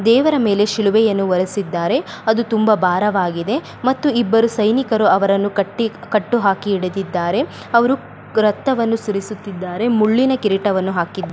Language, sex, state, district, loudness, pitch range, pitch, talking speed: Kannada, female, Karnataka, Bellary, -17 LUFS, 195-230 Hz, 210 Hz, 110 wpm